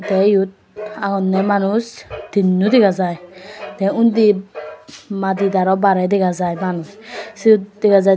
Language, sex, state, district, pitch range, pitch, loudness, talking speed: Chakma, female, Tripura, West Tripura, 185-210 Hz, 195 Hz, -16 LUFS, 130 wpm